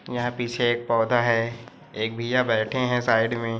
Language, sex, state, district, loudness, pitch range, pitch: Hindi, male, Chhattisgarh, Korba, -24 LUFS, 115-120 Hz, 120 Hz